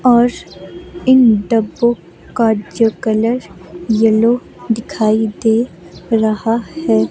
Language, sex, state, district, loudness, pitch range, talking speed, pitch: Hindi, female, Himachal Pradesh, Shimla, -15 LUFS, 220-240 Hz, 95 wpm, 225 Hz